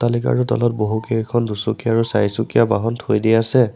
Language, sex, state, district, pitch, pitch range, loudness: Assamese, male, Assam, Sonitpur, 115 Hz, 110-120 Hz, -18 LUFS